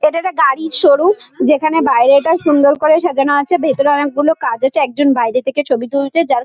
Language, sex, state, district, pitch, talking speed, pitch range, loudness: Bengali, female, West Bengal, Kolkata, 290 Hz, 195 wpm, 275-315 Hz, -13 LUFS